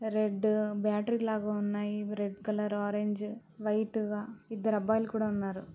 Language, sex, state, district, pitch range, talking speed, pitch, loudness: Telugu, female, Telangana, Nalgonda, 210-220 Hz, 145 wpm, 210 Hz, -32 LUFS